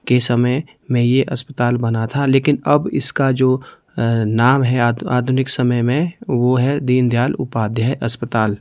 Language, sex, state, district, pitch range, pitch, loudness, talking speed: Hindi, male, Himachal Pradesh, Shimla, 120-135 Hz, 125 Hz, -17 LUFS, 155 wpm